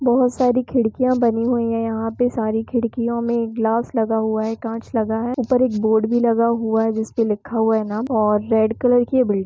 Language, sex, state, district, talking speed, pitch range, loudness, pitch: Hindi, female, Jharkhand, Jamtara, 235 wpm, 220-245 Hz, -19 LUFS, 230 Hz